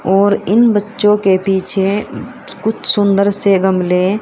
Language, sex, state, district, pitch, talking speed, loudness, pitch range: Hindi, female, Haryana, Rohtak, 200 Hz, 130 wpm, -13 LUFS, 190-210 Hz